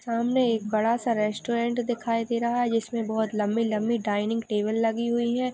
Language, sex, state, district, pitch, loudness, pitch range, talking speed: Hindi, female, Chhattisgarh, Balrampur, 230 Hz, -26 LUFS, 220-235 Hz, 195 wpm